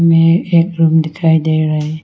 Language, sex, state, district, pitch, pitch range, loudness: Hindi, female, Arunachal Pradesh, Longding, 160 Hz, 155-165 Hz, -13 LUFS